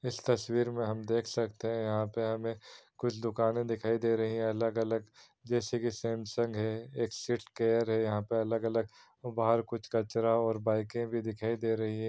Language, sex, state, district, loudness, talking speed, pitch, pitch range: Hindi, male, Bihar, Saran, -33 LUFS, 180 wpm, 115 Hz, 110-115 Hz